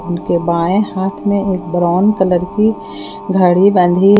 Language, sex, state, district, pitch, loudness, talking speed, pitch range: Hindi, female, Jharkhand, Palamu, 180 Hz, -14 LUFS, 145 wpm, 175-200 Hz